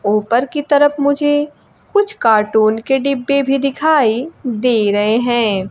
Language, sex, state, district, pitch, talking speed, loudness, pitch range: Hindi, female, Bihar, Kaimur, 255 Hz, 135 wpm, -15 LUFS, 220-285 Hz